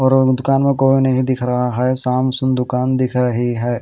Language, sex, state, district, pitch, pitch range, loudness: Hindi, male, Haryana, Charkhi Dadri, 130 Hz, 125-130 Hz, -16 LUFS